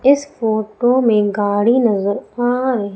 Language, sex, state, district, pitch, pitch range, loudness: Hindi, female, Madhya Pradesh, Umaria, 225 Hz, 205-250 Hz, -16 LUFS